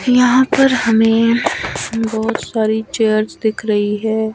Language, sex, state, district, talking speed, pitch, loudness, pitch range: Hindi, female, Himachal Pradesh, Shimla, 125 wpm, 225 Hz, -15 LUFS, 220-235 Hz